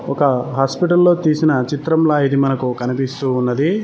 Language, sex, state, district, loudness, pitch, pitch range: Telugu, male, Telangana, Mahabubabad, -16 LUFS, 140 Hz, 130-160 Hz